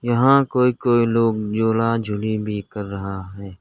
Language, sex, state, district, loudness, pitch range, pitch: Hindi, male, Arunachal Pradesh, Lower Dibang Valley, -20 LUFS, 105-120 Hz, 110 Hz